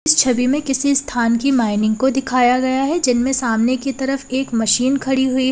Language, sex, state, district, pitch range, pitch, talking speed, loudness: Hindi, female, Uttar Pradesh, Lalitpur, 245-270 Hz, 260 Hz, 215 wpm, -17 LUFS